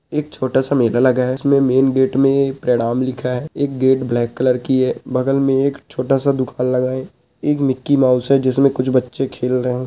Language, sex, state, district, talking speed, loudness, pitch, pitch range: Hindi, male, Uttarakhand, Uttarkashi, 215 wpm, -17 LUFS, 130 Hz, 125-135 Hz